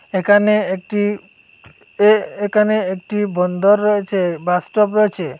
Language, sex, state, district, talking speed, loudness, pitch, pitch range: Bengali, male, Assam, Hailakandi, 110 wpm, -16 LUFS, 205 Hz, 185-210 Hz